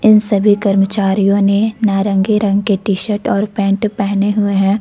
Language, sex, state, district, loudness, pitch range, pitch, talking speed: Hindi, female, Jharkhand, Ranchi, -14 LUFS, 200-210 Hz, 200 Hz, 185 wpm